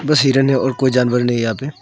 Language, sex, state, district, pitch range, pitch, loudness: Hindi, male, Arunachal Pradesh, Longding, 125-135 Hz, 130 Hz, -16 LUFS